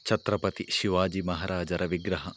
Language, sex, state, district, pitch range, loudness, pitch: Kannada, male, Karnataka, Dakshina Kannada, 90-100 Hz, -29 LUFS, 95 Hz